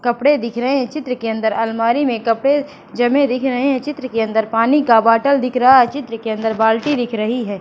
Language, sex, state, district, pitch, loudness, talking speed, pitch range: Hindi, female, Madhya Pradesh, Katni, 245 Hz, -16 LUFS, 235 wpm, 225-270 Hz